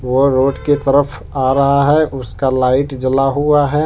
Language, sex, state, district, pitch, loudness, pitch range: Hindi, male, Jharkhand, Deoghar, 135 Hz, -14 LUFS, 130-145 Hz